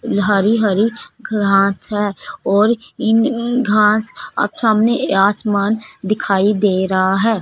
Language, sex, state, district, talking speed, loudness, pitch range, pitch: Hindi, female, Punjab, Fazilka, 120 wpm, -16 LUFS, 200-225 Hz, 210 Hz